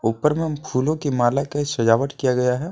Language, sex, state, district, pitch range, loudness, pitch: Hindi, male, Jharkhand, Deoghar, 125-150 Hz, -21 LUFS, 140 Hz